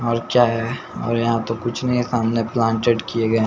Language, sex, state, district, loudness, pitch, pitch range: Hindi, male, Bihar, Patna, -20 LUFS, 115 Hz, 115-120 Hz